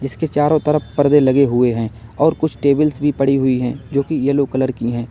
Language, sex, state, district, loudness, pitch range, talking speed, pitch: Hindi, male, Uttar Pradesh, Lalitpur, -17 LUFS, 125-145 Hz, 235 wpm, 140 Hz